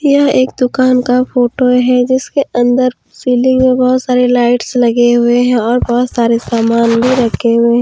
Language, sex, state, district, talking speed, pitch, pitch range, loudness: Hindi, female, Jharkhand, Deoghar, 185 wpm, 250 Hz, 240-255 Hz, -11 LUFS